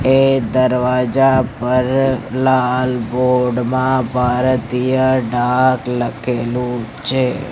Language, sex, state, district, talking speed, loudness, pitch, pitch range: Gujarati, male, Gujarat, Gandhinagar, 80 wpm, -16 LUFS, 125 Hz, 125-130 Hz